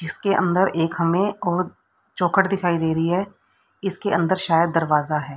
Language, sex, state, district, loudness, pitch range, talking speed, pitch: Hindi, female, Haryana, Rohtak, -21 LUFS, 165-190 Hz, 165 wpm, 175 Hz